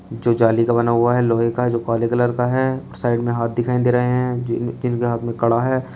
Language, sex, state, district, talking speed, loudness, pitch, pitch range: Hindi, male, Uttar Pradesh, Shamli, 270 wpm, -19 LUFS, 120 Hz, 115-125 Hz